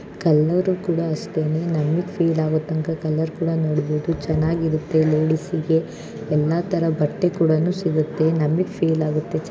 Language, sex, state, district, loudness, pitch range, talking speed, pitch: Kannada, male, Karnataka, Dharwad, -21 LUFS, 155-170 Hz, 130 wpm, 160 Hz